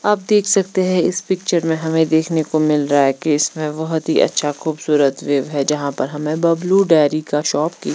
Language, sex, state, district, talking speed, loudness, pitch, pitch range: Hindi, female, Chandigarh, Chandigarh, 220 wpm, -17 LUFS, 160 Hz, 150-170 Hz